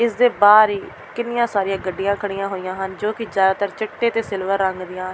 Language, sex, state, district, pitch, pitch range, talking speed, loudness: Punjabi, female, Delhi, New Delhi, 200 Hz, 190-220 Hz, 220 wpm, -19 LUFS